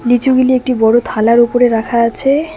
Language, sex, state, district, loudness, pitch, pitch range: Bengali, female, West Bengal, Cooch Behar, -12 LUFS, 245 Hz, 230-255 Hz